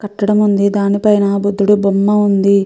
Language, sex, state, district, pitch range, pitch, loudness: Telugu, female, Andhra Pradesh, Chittoor, 200-205 Hz, 200 Hz, -13 LUFS